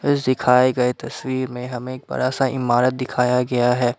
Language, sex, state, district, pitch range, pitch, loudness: Hindi, male, Assam, Kamrup Metropolitan, 125-130 Hz, 125 Hz, -20 LUFS